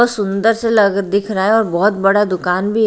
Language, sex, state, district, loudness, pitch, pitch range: Hindi, female, Haryana, Rohtak, -15 LUFS, 205 Hz, 195-220 Hz